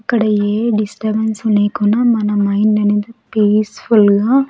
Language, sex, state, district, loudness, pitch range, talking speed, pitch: Telugu, female, Andhra Pradesh, Sri Satya Sai, -14 LUFS, 205-225 Hz, 120 wpm, 215 Hz